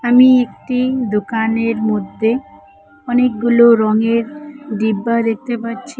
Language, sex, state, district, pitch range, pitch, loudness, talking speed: Bengali, female, West Bengal, Cooch Behar, 220-250 Hz, 230 Hz, -15 LUFS, 90 wpm